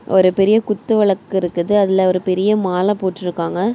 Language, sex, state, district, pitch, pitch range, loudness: Tamil, female, Tamil Nadu, Kanyakumari, 190 Hz, 185-205 Hz, -16 LUFS